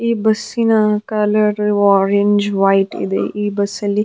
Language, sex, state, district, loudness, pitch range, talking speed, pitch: Kannada, female, Karnataka, Dharwad, -16 LUFS, 200-215 Hz, 135 wpm, 210 Hz